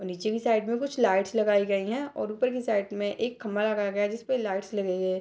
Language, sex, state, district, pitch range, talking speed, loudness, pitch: Hindi, female, Bihar, Purnia, 200-230 Hz, 290 wpm, -28 LUFS, 210 Hz